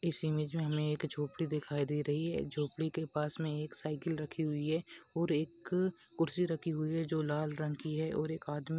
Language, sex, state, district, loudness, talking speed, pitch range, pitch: Hindi, female, West Bengal, Dakshin Dinajpur, -36 LUFS, 225 wpm, 150-165 Hz, 155 Hz